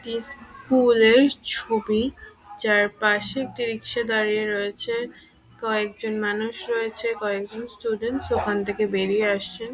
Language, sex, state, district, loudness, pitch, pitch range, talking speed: Bengali, female, West Bengal, Purulia, -23 LUFS, 220 Hz, 210-235 Hz, 115 wpm